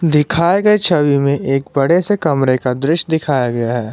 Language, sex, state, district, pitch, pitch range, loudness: Hindi, male, Jharkhand, Garhwa, 145 Hz, 135-170 Hz, -15 LUFS